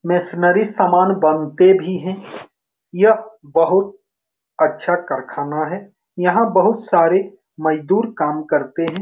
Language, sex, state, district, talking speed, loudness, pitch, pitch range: Hindi, male, Bihar, Saran, 120 wpm, -17 LUFS, 180 Hz, 165-195 Hz